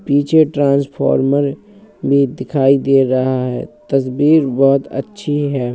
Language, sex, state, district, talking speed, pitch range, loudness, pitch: Hindi, male, Uttar Pradesh, Hamirpur, 115 wpm, 135-145 Hz, -15 LUFS, 140 Hz